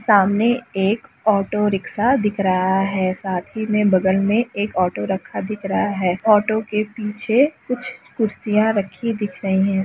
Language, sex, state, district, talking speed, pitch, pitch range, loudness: Hindi, female, Bihar, Lakhisarai, 165 wpm, 210 Hz, 190-220 Hz, -20 LUFS